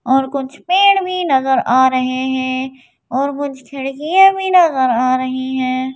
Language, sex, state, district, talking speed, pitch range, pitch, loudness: Hindi, female, Madhya Pradesh, Bhopal, 160 wpm, 260-295 Hz, 265 Hz, -15 LUFS